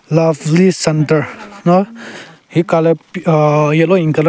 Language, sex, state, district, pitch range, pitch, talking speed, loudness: Rengma, male, Nagaland, Kohima, 155-175 Hz, 165 Hz, 140 wpm, -13 LUFS